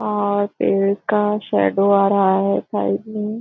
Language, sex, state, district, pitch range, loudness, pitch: Hindi, female, Maharashtra, Nagpur, 195-210 Hz, -18 LUFS, 200 Hz